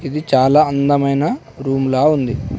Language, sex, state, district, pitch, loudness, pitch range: Telugu, male, Telangana, Adilabad, 140 Hz, -16 LUFS, 130-150 Hz